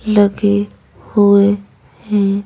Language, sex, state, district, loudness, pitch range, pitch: Hindi, female, Madhya Pradesh, Bhopal, -14 LUFS, 200-205 Hz, 205 Hz